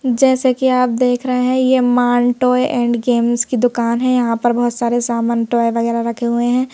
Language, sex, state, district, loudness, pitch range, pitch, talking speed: Hindi, female, Madhya Pradesh, Bhopal, -15 LUFS, 235-250 Hz, 245 Hz, 205 wpm